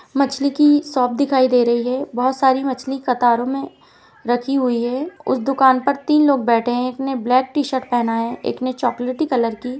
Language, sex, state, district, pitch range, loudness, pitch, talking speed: Hindi, female, Uttar Pradesh, Jalaun, 245-275 Hz, -18 LUFS, 260 Hz, 200 wpm